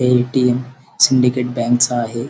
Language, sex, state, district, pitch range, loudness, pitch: Marathi, male, Maharashtra, Sindhudurg, 120-130 Hz, -16 LUFS, 125 Hz